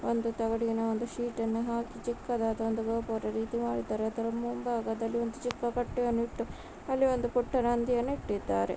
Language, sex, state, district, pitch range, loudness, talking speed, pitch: Kannada, female, Karnataka, Raichur, 225-240 Hz, -32 LUFS, 150 wpm, 235 Hz